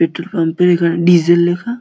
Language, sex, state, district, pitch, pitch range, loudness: Bengali, male, West Bengal, Dakshin Dinajpur, 175 Hz, 170-180 Hz, -13 LUFS